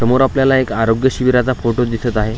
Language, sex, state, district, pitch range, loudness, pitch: Marathi, male, Maharashtra, Washim, 115-130 Hz, -15 LUFS, 125 Hz